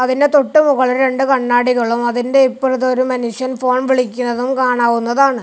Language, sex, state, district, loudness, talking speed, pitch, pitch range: Malayalam, male, Kerala, Kasaragod, -15 LUFS, 135 wpm, 255 Hz, 245-265 Hz